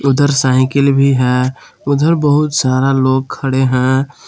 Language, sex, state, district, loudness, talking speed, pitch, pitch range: Hindi, male, Jharkhand, Palamu, -13 LUFS, 140 wpm, 135 Hz, 130-140 Hz